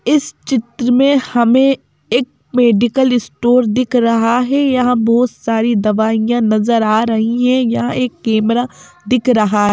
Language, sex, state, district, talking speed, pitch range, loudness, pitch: Hindi, female, Madhya Pradesh, Bhopal, 140 wpm, 225-250 Hz, -14 LUFS, 240 Hz